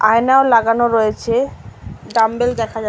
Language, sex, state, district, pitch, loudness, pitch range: Bengali, female, West Bengal, Malda, 230 Hz, -15 LUFS, 225-240 Hz